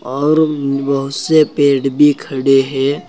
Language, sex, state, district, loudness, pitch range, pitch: Hindi, male, Uttar Pradesh, Saharanpur, -14 LUFS, 135-150 Hz, 140 Hz